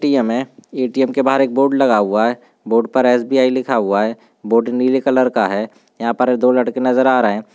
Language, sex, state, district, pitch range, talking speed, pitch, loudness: Hindi, male, Uttarakhand, Uttarkashi, 115-130 Hz, 230 wpm, 125 Hz, -16 LUFS